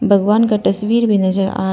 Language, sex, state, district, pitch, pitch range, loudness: Hindi, female, Arunachal Pradesh, Papum Pare, 205 Hz, 195-220 Hz, -15 LUFS